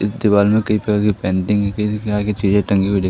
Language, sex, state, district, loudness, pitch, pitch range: Hindi, male, Madhya Pradesh, Katni, -17 LUFS, 105 Hz, 100-105 Hz